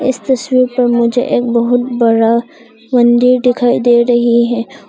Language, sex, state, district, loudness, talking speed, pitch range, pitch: Hindi, female, Arunachal Pradesh, Longding, -12 LUFS, 145 wpm, 235-250 Hz, 240 Hz